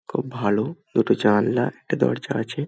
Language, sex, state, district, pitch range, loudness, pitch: Bengali, male, West Bengal, Malda, 105-145 Hz, -22 LUFS, 125 Hz